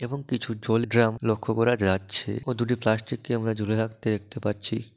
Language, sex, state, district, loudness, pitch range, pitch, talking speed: Bengali, male, West Bengal, Dakshin Dinajpur, -26 LUFS, 110-120 Hz, 115 Hz, 180 wpm